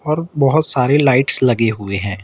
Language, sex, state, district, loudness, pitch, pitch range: Hindi, male, Jharkhand, Ranchi, -15 LUFS, 130 Hz, 115-145 Hz